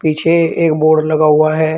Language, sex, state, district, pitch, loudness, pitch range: Hindi, male, Uttar Pradesh, Shamli, 155 Hz, -12 LUFS, 155-160 Hz